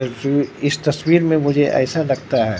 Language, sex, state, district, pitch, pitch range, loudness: Hindi, male, Bihar, Katihar, 145 Hz, 135-155 Hz, -18 LUFS